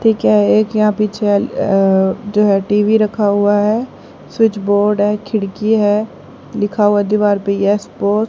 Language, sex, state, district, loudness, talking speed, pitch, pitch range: Hindi, female, Haryana, Jhajjar, -14 LUFS, 175 wpm, 205 Hz, 200-215 Hz